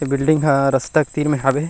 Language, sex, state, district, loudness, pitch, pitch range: Chhattisgarhi, male, Chhattisgarh, Rajnandgaon, -17 LUFS, 145 Hz, 135-150 Hz